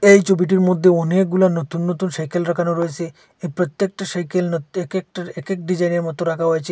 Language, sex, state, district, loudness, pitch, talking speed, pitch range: Bengali, male, Assam, Hailakandi, -19 LUFS, 175 Hz, 170 wpm, 170-185 Hz